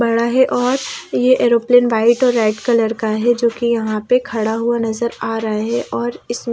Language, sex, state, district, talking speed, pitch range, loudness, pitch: Hindi, female, Haryana, Rohtak, 210 wpm, 220-240 Hz, -16 LUFS, 235 Hz